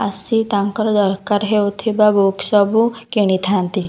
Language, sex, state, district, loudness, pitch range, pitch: Odia, female, Odisha, Khordha, -16 LUFS, 195-215 Hz, 205 Hz